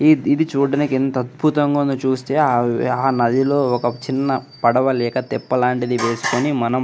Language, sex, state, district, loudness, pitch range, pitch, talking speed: Telugu, male, Andhra Pradesh, Anantapur, -18 LUFS, 125-140 Hz, 130 Hz, 160 wpm